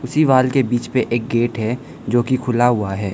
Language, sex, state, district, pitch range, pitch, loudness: Hindi, male, Arunachal Pradesh, Lower Dibang Valley, 115-130 Hz, 120 Hz, -18 LUFS